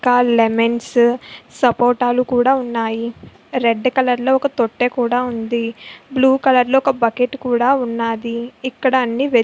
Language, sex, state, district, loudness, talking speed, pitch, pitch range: Telugu, female, Andhra Pradesh, Visakhapatnam, -17 LUFS, 140 wpm, 245 Hz, 235-260 Hz